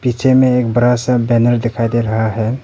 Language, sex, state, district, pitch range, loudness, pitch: Hindi, male, Arunachal Pradesh, Papum Pare, 115-125 Hz, -14 LUFS, 120 Hz